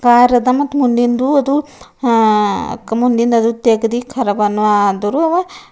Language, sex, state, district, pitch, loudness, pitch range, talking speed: Kannada, female, Karnataka, Bidar, 240 Hz, -14 LUFS, 225-275 Hz, 105 wpm